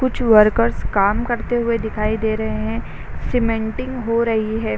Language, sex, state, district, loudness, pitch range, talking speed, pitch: Hindi, female, Bihar, Sitamarhi, -19 LUFS, 220-235 Hz, 165 wpm, 225 Hz